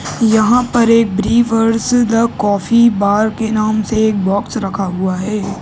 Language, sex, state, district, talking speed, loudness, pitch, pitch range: Hindi, male, Uttar Pradesh, Gorakhpur, 160 wpm, -14 LUFS, 220 Hz, 205-230 Hz